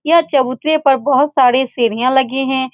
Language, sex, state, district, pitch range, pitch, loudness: Hindi, female, Bihar, Saran, 255-285 Hz, 265 Hz, -14 LUFS